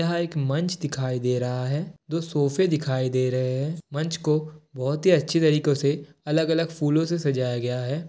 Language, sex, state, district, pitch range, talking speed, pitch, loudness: Hindi, male, Bihar, Kishanganj, 130-165 Hz, 185 wpm, 150 Hz, -25 LUFS